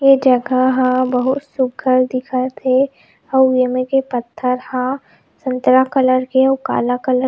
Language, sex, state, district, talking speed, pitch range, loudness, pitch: Chhattisgarhi, female, Chhattisgarh, Rajnandgaon, 165 wpm, 255-265 Hz, -16 LUFS, 255 Hz